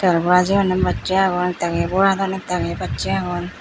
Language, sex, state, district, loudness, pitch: Chakma, female, Tripura, Unakoti, -19 LUFS, 180 Hz